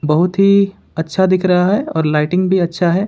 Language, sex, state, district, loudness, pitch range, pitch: Hindi, male, Jharkhand, Ranchi, -15 LUFS, 160-190 Hz, 180 Hz